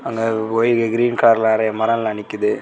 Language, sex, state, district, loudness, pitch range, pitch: Tamil, male, Tamil Nadu, Kanyakumari, -17 LUFS, 110-115 Hz, 115 Hz